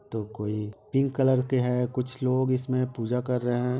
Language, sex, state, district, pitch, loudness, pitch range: Hindi, male, Bihar, Sitamarhi, 125 Hz, -27 LUFS, 120-130 Hz